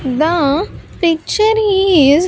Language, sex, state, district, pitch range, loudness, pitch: English, female, Andhra Pradesh, Sri Satya Sai, 295-390 Hz, -14 LUFS, 335 Hz